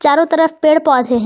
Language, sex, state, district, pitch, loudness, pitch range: Hindi, female, Jharkhand, Palamu, 310 Hz, -12 LUFS, 270-320 Hz